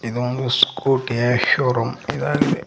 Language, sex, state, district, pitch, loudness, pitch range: Kannada, male, Karnataka, Koppal, 125 Hz, -19 LUFS, 120-130 Hz